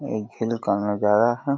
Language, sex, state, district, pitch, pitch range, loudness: Hindi, male, Uttar Pradesh, Deoria, 110 Hz, 105-120 Hz, -23 LUFS